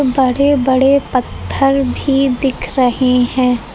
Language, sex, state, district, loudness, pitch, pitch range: Hindi, female, Uttar Pradesh, Lucknow, -14 LUFS, 265 Hz, 255-275 Hz